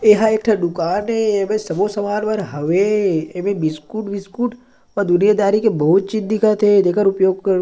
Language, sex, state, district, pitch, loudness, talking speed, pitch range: Chhattisgarhi, male, Chhattisgarh, Sarguja, 205 Hz, -17 LUFS, 180 wpm, 190-215 Hz